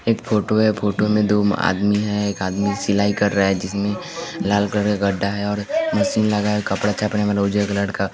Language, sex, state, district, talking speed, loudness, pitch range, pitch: Hindi, male, Bihar, West Champaran, 220 wpm, -20 LUFS, 100-105 Hz, 105 Hz